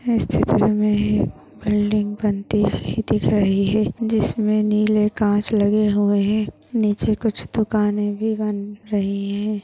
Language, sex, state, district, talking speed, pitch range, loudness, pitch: Hindi, female, Maharashtra, Nagpur, 145 wpm, 205-215 Hz, -20 LUFS, 210 Hz